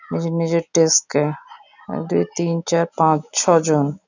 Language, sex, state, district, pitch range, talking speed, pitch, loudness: Bengali, female, West Bengal, Jhargram, 150-170 Hz, 175 wpm, 165 Hz, -19 LUFS